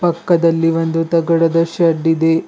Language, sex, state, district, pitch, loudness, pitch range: Kannada, male, Karnataka, Bidar, 165 Hz, -15 LUFS, 165-170 Hz